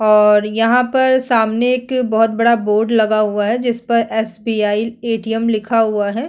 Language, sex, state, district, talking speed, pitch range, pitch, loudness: Hindi, female, Chhattisgarh, Sukma, 160 wpm, 215-235 Hz, 225 Hz, -15 LUFS